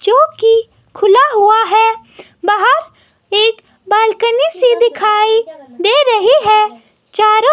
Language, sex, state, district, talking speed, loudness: Hindi, female, Himachal Pradesh, Shimla, 110 wpm, -11 LUFS